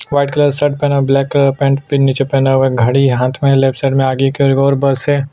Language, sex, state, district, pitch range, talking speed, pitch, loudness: Hindi, male, Chhattisgarh, Sukma, 135-140 Hz, 245 wpm, 135 Hz, -13 LUFS